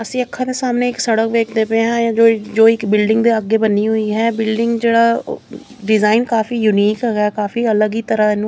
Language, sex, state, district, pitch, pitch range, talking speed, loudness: Punjabi, female, Chandigarh, Chandigarh, 225 Hz, 215-230 Hz, 205 wpm, -15 LUFS